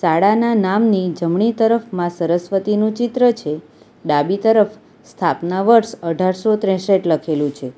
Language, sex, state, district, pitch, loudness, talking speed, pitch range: Gujarati, female, Gujarat, Valsad, 195 Hz, -17 LUFS, 130 wpm, 170-220 Hz